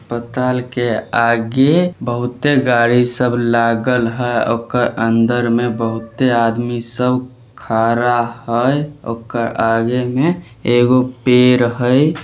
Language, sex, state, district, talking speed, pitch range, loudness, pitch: Maithili, male, Bihar, Samastipur, 110 wpm, 115-125 Hz, -16 LUFS, 120 Hz